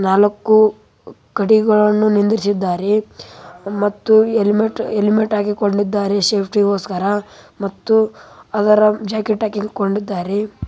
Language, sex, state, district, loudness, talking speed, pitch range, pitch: Kannada, female, Karnataka, Raichur, -16 LUFS, 60 wpm, 200-215 Hz, 210 Hz